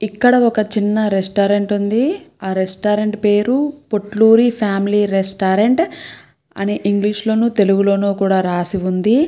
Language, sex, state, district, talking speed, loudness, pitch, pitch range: Telugu, female, Andhra Pradesh, Krishna, 115 wpm, -16 LUFS, 210 Hz, 200-225 Hz